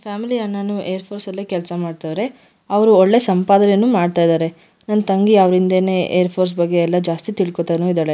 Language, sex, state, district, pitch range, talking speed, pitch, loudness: Kannada, female, Karnataka, Mysore, 175-205 Hz, 155 wpm, 185 Hz, -17 LUFS